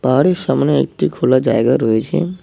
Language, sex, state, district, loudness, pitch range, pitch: Bengali, male, West Bengal, Cooch Behar, -15 LUFS, 115-175 Hz, 130 Hz